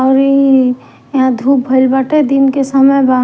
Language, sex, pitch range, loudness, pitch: Bhojpuri, female, 260-275 Hz, -11 LUFS, 270 Hz